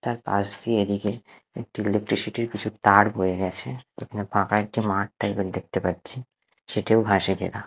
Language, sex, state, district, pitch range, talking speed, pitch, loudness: Bengali, male, Odisha, Nuapada, 100-115 Hz, 170 wpm, 105 Hz, -24 LUFS